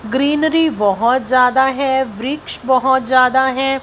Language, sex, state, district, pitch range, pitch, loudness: Hindi, female, Punjab, Fazilka, 255-270 Hz, 265 Hz, -15 LUFS